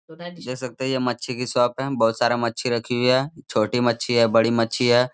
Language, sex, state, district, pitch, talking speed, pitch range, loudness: Hindi, male, Bihar, Jamui, 125 Hz, 235 wpm, 120-130 Hz, -22 LUFS